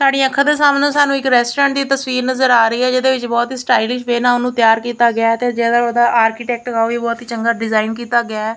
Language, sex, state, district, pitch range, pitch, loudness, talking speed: Punjabi, female, Punjab, Kapurthala, 235-260 Hz, 240 Hz, -15 LUFS, 275 wpm